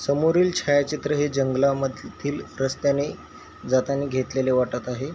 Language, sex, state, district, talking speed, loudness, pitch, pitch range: Marathi, male, Maharashtra, Chandrapur, 130 wpm, -24 LUFS, 140 Hz, 130-145 Hz